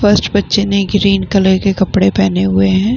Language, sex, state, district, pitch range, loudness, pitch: Hindi, female, Bihar, Vaishali, 190-200 Hz, -12 LUFS, 195 Hz